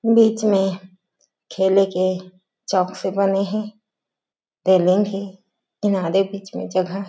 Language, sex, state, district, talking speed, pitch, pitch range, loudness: Chhattisgarhi, female, Chhattisgarh, Jashpur, 110 wpm, 195 Hz, 185-200 Hz, -20 LUFS